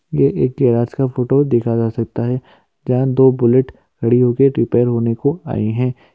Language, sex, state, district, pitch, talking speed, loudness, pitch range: Hindi, male, Uttarakhand, Uttarkashi, 125 Hz, 195 wpm, -16 LUFS, 115-130 Hz